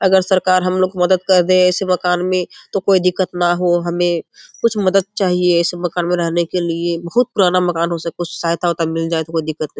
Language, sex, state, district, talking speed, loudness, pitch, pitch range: Hindi, female, Bihar, Kishanganj, 225 wpm, -16 LUFS, 180 Hz, 170-185 Hz